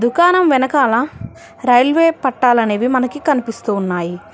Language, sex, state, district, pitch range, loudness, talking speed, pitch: Telugu, female, Telangana, Hyderabad, 230-290 Hz, -15 LUFS, 85 wpm, 255 Hz